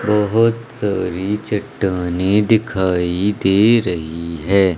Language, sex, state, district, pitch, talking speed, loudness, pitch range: Hindi, male, Madhya Pradesh, Umaria, 100 Hz, 90 wpm, -17 LUFS, 90-105 Hz